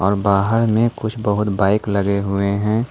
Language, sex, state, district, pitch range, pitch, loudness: Hindi, male, Jharkhand, Ranchi, 100-110 Hz, 105 Hz, -18 LUFS